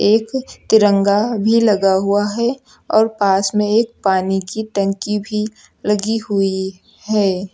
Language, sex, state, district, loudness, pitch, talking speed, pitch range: Hindi, male, Uttar Pradesh, Lucknow, -17 LUFS, 210 Hz, 135 wpm, 195-220 Hz